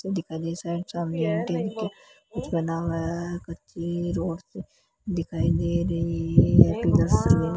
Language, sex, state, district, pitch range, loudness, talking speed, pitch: Hindi, female, Rajasthan, Bikaner, 165-175 Hz, -25 LUFS, 145 wpm, 170 Hz